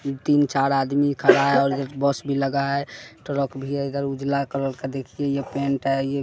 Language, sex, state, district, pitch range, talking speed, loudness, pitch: Hindi, male, Bihar, West Champaran, 135-140 Hz, 200 wpm, -23 LUFS, 140 Hz